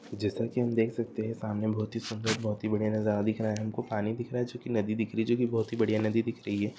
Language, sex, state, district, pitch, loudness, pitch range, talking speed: Hindi, male, Andhra Pradesh, Anantapur, 110 Hz, -31 LUFS, 110-115 Hz, 325 wpm